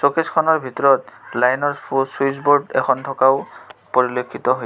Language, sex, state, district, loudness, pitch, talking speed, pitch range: Assamese, male, Assam, Kamrup Metropolitan, -18 LUFS, 135 Hz, 155 wpm, 130-145 Hz